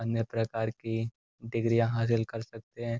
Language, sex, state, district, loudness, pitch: Hindi, male, Uttar Pradesh, Gorakhpur, -31 LUFS, 115 Hz